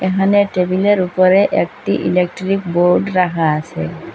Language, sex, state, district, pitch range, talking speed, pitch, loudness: Bengali, female, Assam, Hailakandi, 175-195 Hz, 115 wpm, 185 Hz, -15 LUFS